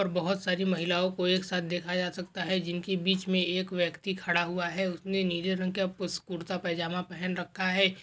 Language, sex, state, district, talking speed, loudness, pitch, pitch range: Hindi, male, Maharashtra, Dhule, 210 wpm, -30 LUFS, 180 Hz, 175-185 Hz